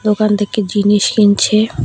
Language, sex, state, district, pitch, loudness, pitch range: Bengali, female, Tripura, West Tripura, 210 Hz, -13 LUFS, 205-215 Hz